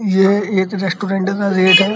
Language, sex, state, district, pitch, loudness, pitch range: Hindi, male, Uttar Pradesh, Muzaffarnagar, 195 Hz, -15 LUFS, 190-200 Hz